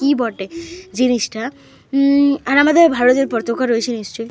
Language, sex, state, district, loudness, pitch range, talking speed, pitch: Bengali, female, Jharkhand, Jamtara, -16 LUFS, 235-285 Hz, 140 wpm, 255 Hz